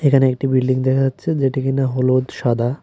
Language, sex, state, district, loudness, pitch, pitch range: Bengali, male, Tripura, West Tripura, -18 LUFS, 130 Hz, 130-135 Hz